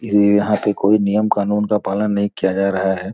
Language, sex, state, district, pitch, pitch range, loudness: Hindi, male, Bihar, Gopalganj, 100 Hz, 95-105 Hz, -17 LUFS